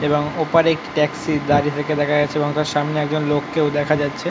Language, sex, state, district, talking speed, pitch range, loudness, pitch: Bengali, male, West Bengal, North 24 Parganas, 210 wpm, 145-155 Hz, -19 LUFS, 150 Hz